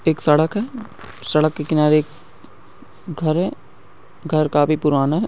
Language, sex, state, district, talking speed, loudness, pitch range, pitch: Hindi, male, Chhattisgarh, Sukma, 150 wpm, -18 LUFS, 145-160 Hz, 155 Hz